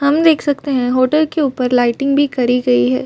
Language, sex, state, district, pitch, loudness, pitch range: Hindi, female, Chhattisgarh, Rajnandgaon, 270 Hz, -15 LUFS, 250-290 Hz